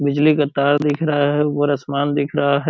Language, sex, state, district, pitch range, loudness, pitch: Hindi, male, Bihar, Purnia, 140-145 Hz, -18 LUFS, 145 Hz